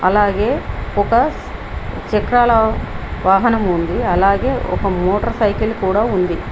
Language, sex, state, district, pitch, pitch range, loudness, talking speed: Telugu, female, Telangana, Mahabubabad, 205 Hz, 190-220 Hz, -16 LUFS, 100 wpm